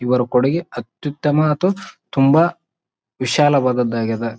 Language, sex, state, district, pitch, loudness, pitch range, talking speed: Kannada, male, Karnataka, Bijapur, 135 Hz, -18 LUFS, 125-160 Hz, 80 wpm